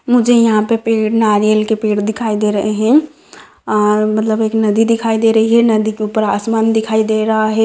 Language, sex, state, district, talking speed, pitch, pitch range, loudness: Hindi, female, Jharkhand, Sahebganj, 210 wpm, 220 Hz, 215-225 Hz, -14 LUFS